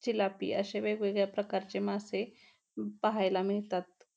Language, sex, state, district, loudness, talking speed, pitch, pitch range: Marathi, female, Maharashtra, Pune, -34 LUFS, 100 wpm, 200 Hz, 190-210 Hz